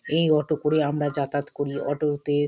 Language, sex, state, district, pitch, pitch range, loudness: Bengali, female, West Bengal, Kolkata, 145 Hz, 145-150 Hz, -24 LUFS